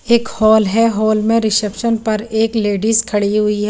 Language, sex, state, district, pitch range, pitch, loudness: Hindi, female, Chandigarh, Chandigarh, 210-225 Hz, 220 Hz, -15 LUFS